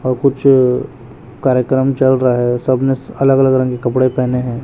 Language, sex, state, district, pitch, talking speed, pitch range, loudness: Hindi, male, Chhattisgarh, Raipur, 130 Hz, 195 wpm, 125-135 Hz, -14 LUFS